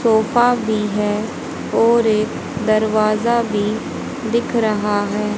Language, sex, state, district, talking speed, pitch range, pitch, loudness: Hindi, female, Haryana, Jhajjar, 110 wpm, 210-235 Hz, 220 Hz, -18 LUFS